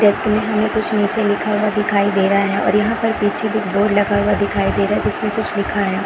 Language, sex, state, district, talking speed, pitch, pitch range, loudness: Hindi, female, Chhattisgarh, Bilaspur, 275 wpm, 205 Hz, 200-215 Hz, -17 LUFS